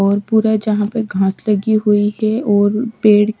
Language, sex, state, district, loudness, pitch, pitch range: Hindi, female, Bihar, Katihar, -15 LUFS, 210 Hz, 205-220 Hz